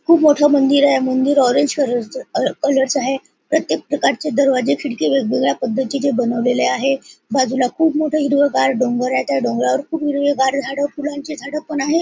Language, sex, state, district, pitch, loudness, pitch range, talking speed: Marathi, female, Maharashtra, Nagpur, 275 Hz, -17 LUFS, 260-290 Hz, 160 wpm